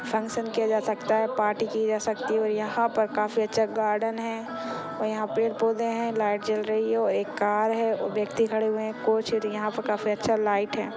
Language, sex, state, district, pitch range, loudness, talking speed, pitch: Hindi, female, Maharashtra, Nagpur, 215-225 Hz, -26 LUFS, 225 wpm, 220 Hz